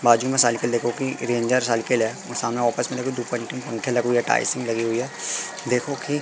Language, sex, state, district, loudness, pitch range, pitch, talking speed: Hindi, male, Madhya Pradesh, Katni, -23 LUFS, 115-125 Hz, 120 Hz, 220 wpm